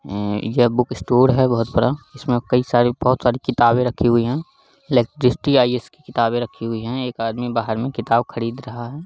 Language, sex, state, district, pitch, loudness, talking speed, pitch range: Hindi, male, Bihar, Lakhisarai, 120 Hz, -19 LUFS, 210 wpm, 115-130 Hz